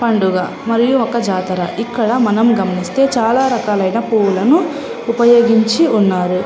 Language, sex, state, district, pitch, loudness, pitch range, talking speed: Telugu, female, Andhra Pradesh, Anantapur, 225 Hz, -14 LUFS, 190-240 Hz, 120 wpm